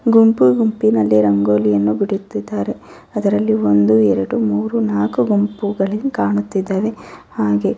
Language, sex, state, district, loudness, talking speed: Kannada, female, Karnataka, Bellary, -16 LUFS, 100 wpm